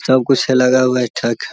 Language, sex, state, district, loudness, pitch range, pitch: Hindi, male, Bihar, Vaishali, -14 LUFS, 125-130 Hz, 130 Hz